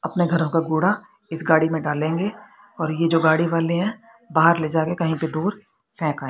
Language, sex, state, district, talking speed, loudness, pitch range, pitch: Hindi, female, Haryana, Rohtak, 210 wpm, -21 LUFS, 160-180 Hz, 165 Hz